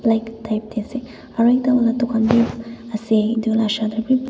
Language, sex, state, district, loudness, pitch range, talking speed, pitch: Nagamese, female, Nagaland, Dimapur, -19 LUFS, 220-240 Hz, 195 wpm, 225 Hz